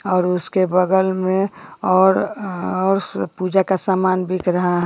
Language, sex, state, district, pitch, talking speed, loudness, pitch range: Hindi, female, Bihar, Bhagalpur, 185 Hz, 160 wpm, -19 LUFS, 185-190 Hz